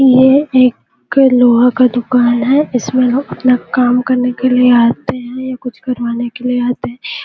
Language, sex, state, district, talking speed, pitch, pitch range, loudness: Hindi, female, Chhattisgarh, Bilaspur, 190 wpm, 250 Hz, 245-255 Hz, -12 LUFS